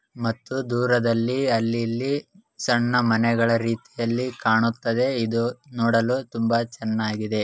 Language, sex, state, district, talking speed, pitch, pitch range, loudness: Kannada, male, Karnataka, Bellary, 95 wpm, 115 Hz, 115-125 Hz, -23 LUFS